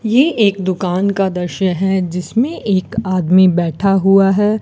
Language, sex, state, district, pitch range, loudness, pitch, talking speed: Hindi, female, Rajasthan, Bikaner, 180-205 Hz, -15 LUFS, 190 Hz, 155 wpm